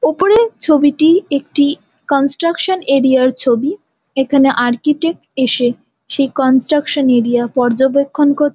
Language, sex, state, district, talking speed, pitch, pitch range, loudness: Bengali, female, West Bengal, Jalpaiguri, 100 wpm, 280 Hz, 260-300 Hz, -14 LUFS